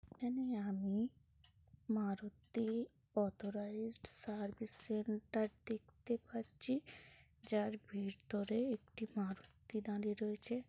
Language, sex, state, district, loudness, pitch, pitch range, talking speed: Bengali, female, West Bengal, Malda, -42 LUFS, 215 Hz, 205-230 Hz, 80 wpm